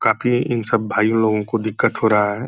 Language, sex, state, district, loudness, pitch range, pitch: Hindi, male, Bihar, Purnia, -18 LUFS, 105-115 Hz, 110 Hz